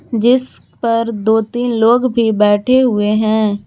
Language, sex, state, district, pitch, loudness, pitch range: Hindi, female, Jharkhand, Garhwa, 230 Hz, -14 LUFS, 215-240 Hz